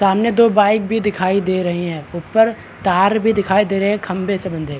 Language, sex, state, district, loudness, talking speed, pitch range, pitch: Hindi, male, Chhattisgarh, Balrampur, -17 LUFS, 235 wpm, 185-215 Hz, 200 Hz